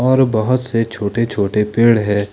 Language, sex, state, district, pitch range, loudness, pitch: Hindi, male, Jharkhand, Ranchi, 105-115 Hz, -16 LUFS, 115 Hz